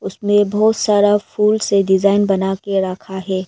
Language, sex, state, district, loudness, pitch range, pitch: Hindi, female, Arunachal Pradesh, Lower Dibang Valley, -16 LUFS, 190-205 Hz, 200 Hz